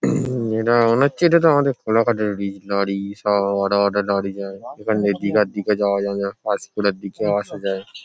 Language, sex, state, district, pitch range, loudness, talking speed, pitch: Bengali, male, West Bengal, Paschim Medinipur, 100-115 Hz, -20 LUFS, 195 wpm, 100 Hz